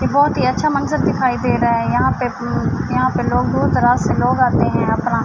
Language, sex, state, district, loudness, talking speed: Urdu, female, Andhra Pradesh, Anantapur, -17 LUFS, 240 wpm